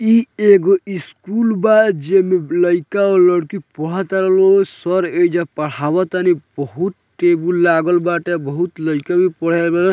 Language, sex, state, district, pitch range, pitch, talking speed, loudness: Bhojpuri, male, Bihar, Muzaffarpur, 170-190 Hz, 180 Hz, 145 wpm, -16 LUFS